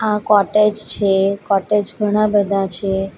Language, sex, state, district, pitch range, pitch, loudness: Gujarati, female, Gujarat, Valsad, 195-210 Hz, 205 Hz, -17 LUFS